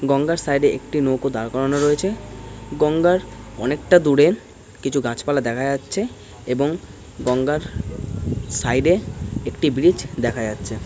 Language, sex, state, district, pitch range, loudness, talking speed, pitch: Bengali, male, West Bengal, Kolkata, 120-150 Hz, -20 LUFS, 135 wpm, 140 Hz